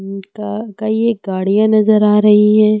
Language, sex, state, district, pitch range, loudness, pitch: Hindi, female, Uttar Pradesh, Lucknow, 210-215 Hz, -13 LUFS, 210 Hz